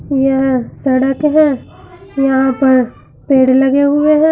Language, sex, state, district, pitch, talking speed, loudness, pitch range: Hindi, female, Uttar Pradesh, Saharanpur, 270 Hz, 125 wpm, -12 LUFS, 265-285 Hz